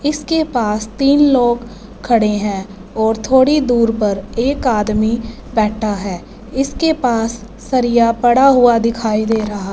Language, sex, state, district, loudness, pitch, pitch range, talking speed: Hindi, female, Punjab, Fazilka, -15 LUFS, 230 Hz, 215-255 Hz, 135 wpm